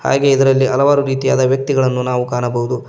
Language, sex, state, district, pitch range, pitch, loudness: Kannada, male, Karnataka, Koppal, 125-135 Hz, 130 Hz, -15 LUFS